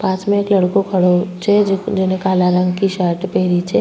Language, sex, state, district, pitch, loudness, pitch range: Rajasthani, female, Rajasthan, Churu, 190 Hz, -16 LUFS, 180-195 Hz